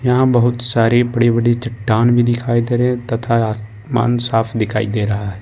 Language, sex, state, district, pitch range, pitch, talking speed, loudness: Hindi, male, Jharkhand, Ranchi, 110-120 Hz, 120 Hz, 190 wpm, -16 LUFS